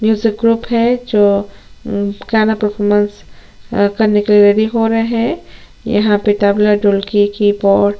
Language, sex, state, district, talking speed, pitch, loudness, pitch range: Hindi, female, Chhattisgarh, Sukma, 155 wpm, 210 Hz, -14 LUFS, 205-220 Hz